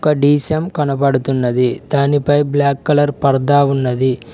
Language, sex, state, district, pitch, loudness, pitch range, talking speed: Telugu, male, Telangana, Mahabubabad, 140 Hz, -15 LUFS, 135-145 Hz, 95 wpm